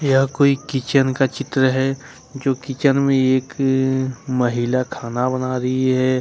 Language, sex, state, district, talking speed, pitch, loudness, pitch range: Hindi, male, Jharkhand, Ranchi, 145 wpm, 130 Hz, -19 LUFS, 130-135 Hz